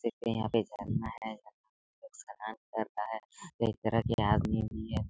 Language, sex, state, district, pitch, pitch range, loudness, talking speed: Hindi, male, Bihar, Araria, 110 Hz, 110-115 Hz, -34 LUFS, 115 wpm